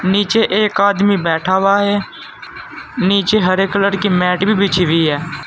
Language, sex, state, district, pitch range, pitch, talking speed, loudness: Hindi, male, Uttar Pradesh, Saharanpur, 185-205 Hz, 200 Hz, 165 wpm, -14 LUFS